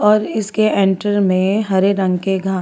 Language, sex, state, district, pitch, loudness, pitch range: Hindi, female, Chhattisgarh, Korba, 195 Hz, -16 LUFS, 190-210 Hz